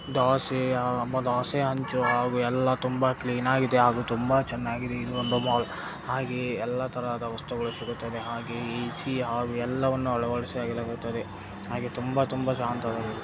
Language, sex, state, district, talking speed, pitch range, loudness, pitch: Kannada, male, Karnataka, Dharwad, 120 wpm, 120-130 Hz, -28 LUFS, 125 Hz